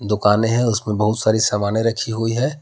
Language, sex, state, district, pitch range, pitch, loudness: Hindi, male, Jharkhand, Palamu, 105-115 Hz, 110 Hz, -18 LUFS